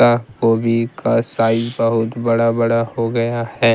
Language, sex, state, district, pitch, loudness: Hindi, male, Jharkhand, Deoghar, 115 Hz, -17 LUFS